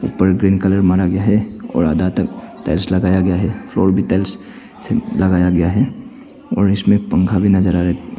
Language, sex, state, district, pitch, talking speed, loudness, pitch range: Hindi, male, Arunachal Pradesh, Papum Pare, 95 Hz, 200 wpm, -16 LUFS, 90-100 Hz